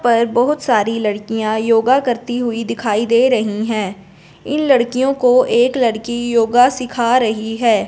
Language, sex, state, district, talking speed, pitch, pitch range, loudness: Hindi, female, Punjab, Fazilka, 150 wpm, 235 Hz, 220-245 Hz, -16 LUFS